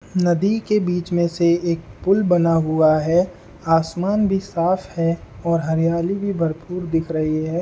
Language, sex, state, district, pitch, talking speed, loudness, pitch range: Hindi, male, Uttar Pradesh, Etah, 170 Hz, 165 wpm, -20 LUFS, 165-180 Hz